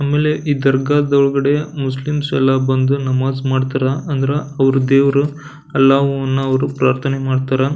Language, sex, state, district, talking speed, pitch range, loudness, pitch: Kannada, male, Karnataka, Belgaum, 115 wpm, 135-145 Hz, -16 LUFS, 135 Hz